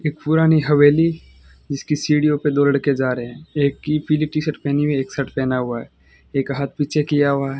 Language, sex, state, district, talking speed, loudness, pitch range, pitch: Hindi, male, Rajasthan, Bikaner, 230 wpm, -19 LUFS, 135-150 Hz, 145 Hz